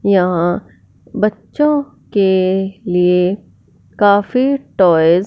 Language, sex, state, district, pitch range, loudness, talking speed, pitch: Hindi, female, Punjab, Fazilka, 180-210 Hz, -15 LUFS, 80 wpm, 195 Hz